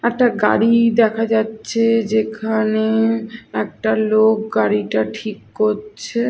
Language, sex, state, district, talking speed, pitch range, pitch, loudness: Bengali, female, Odisha, Khordha, 95 wpm, 215-230 Hz, 220 Hz, -18 LUFS